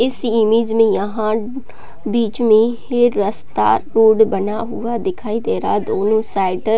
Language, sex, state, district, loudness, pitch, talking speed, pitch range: Hindi, female, Chhattisgarh, Raigarh, -17 LUFS, 220 Hz, 150 wpm, 215-235 Hz